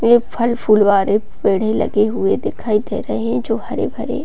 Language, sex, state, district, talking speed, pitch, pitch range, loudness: Hindi, female, Bihar, Gopalganj, 185 wpm, 220 Hz, 210-235 Hz, -17 LUFS